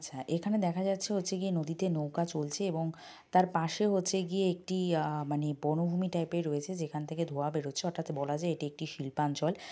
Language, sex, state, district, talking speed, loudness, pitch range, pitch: Bengali, female, West Bengal, North 24 Parganas, 200 wpm, -33 LUFS, 150-185 Hz, 165 Hz